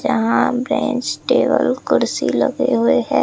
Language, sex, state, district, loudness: Hindi, female, Bihar, Katihar, -17 LUFS